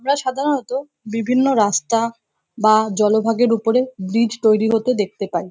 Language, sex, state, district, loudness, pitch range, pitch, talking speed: Bengali, female, West Bengal, North 24 Parganas, -18 LUFS, 215-250 Hz, 225 Hz, 130 wpm